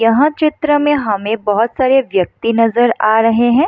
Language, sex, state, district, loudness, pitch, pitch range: Hindi, female, Bihar, Madhepura, -14 LUFS, 230 Hz, 225-285 Hz